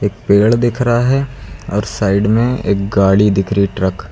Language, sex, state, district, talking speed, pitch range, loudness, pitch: Hindi, male, Uttar Pradesh, Lucknow, 190 wpm, 100-120 Hz, -14 LUFS, 100 Hz